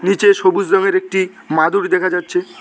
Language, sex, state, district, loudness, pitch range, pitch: Bengali, male, West Bengal, Cooch Behar, -15 LUFS, 185-200 Hz, 190 Hz